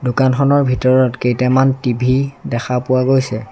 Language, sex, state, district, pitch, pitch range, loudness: Assamese, male, Assam, Sonitpur, 130 Hz, 125-135 Hz, -15 LUFS